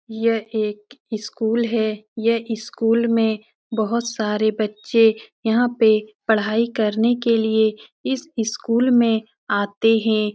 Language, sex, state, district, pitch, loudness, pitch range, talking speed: Hindi, female, Uttar Pradesh, Etah, 225 Hz, -20 LUFS, 215-230 Hz, 120 wpm